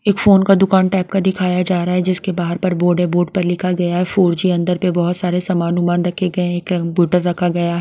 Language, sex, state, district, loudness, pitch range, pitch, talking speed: Hindi, female, Haryana, Rohtak, -16 LUFS, 175-185 Hz, 180 Hz, 270 wpm